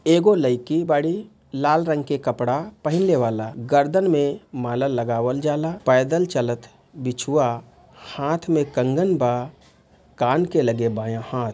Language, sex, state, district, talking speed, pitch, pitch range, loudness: Bhojpuri, male, Bihar, Gopalganj, 140 wpm, 140 Hz, 120-160 Hz, -22 LUFS